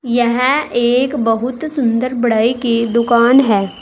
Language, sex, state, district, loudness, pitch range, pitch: Hindi, female, Uttar Pradesh, Saharanpur, -14 LUFS, 230-255 Hz, 240 Hz